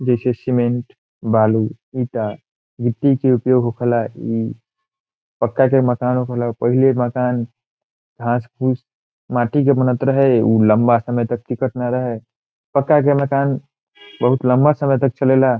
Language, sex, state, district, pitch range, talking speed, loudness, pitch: Bhojpuri, male, Bihar, Saran, 120-135 Hz, 140 wpm, -18 LUFS, 125 Hz